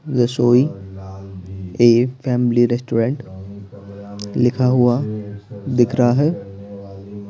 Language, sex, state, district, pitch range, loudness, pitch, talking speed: Hindi, male, Bihar, Patna, 100-125 Hz, -17 LUFS, 115 Hz, 75 wpm